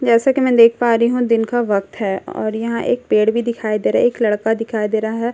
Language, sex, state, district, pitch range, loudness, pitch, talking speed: Hindi, female, Bihar, Katihar, 215-240 Hz, -17 LUFS, 230 Hz, 305 wpm